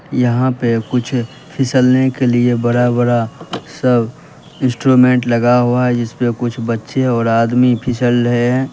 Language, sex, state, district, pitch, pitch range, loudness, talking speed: Hindi, male, Uttar Pradesh, Lalitpur, 125 Hz, 120-130 Hz, -15 LUFS, 145 wpm